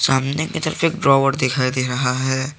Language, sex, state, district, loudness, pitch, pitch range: Hindi, male, Jharkhand, Garhwa, -19 LUFS, 135 Hz, 130-155 Hz